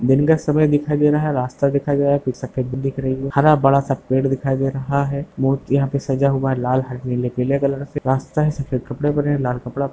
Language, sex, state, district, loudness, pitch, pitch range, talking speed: Hindi, female, Bihar, Lakhisarai, -19 LUFS, 135 Hz, 130-140 Hz, 285 wpm